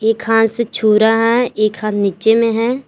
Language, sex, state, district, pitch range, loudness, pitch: Hindi, female, Jharkhand, Garhwa, 215-230 Hz, -14 LUFS, 225 Hz